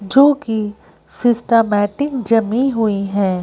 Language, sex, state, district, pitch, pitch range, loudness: Hindi, female, Madhya Pradesh, Bhopal, 225 Hz, 205-250 Hz, -16 LUFS